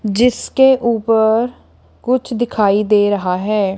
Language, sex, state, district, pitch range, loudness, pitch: Hindi, female, Punjab, Kapurthala, 205-245 Hz, -15 LUFS, 220 Hz